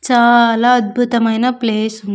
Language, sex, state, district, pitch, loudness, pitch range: Telugu, female, Andhra Pradesh, Sri Satya Sai, 235 Hz, -13 LUFS, 225-245 Hz